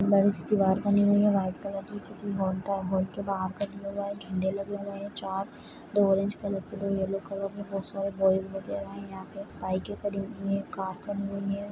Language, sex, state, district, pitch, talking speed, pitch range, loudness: Hindi, male, Chhattisgarh, Bastar, 200 Hz, 135 wpm, 195-200 Hz, -30 LUFS